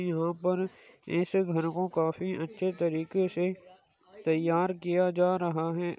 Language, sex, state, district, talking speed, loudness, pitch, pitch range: Hindi, male, Uttar Pradesh, Muzaffarnagar, 140 wpm, -30 LUFS, 180 Hz, 165-185 Hz